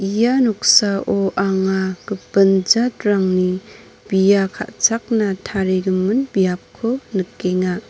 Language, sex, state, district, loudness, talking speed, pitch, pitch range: Garo, female, Meghalaya, North Garo Hills, -18 LUFS, 75 wpm, 195 Hz, 190-225 Hz